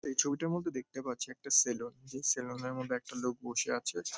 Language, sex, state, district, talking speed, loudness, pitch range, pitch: Bengali, male, West Bengal, Kolkata, 215 wpm, -34 LUFS, 125-135 Hz, 130 Hz